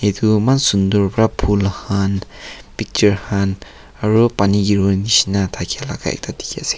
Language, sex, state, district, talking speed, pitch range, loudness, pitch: Nagamese, male, Nagaland, Kohima, 150 wpm, 100-110 Hz, -17 LUFS, 100 Hz